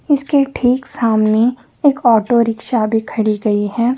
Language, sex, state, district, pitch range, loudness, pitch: Hindi, female, Bihar, Saran, 220-255 Hz, -15 LUFS, 235 Hz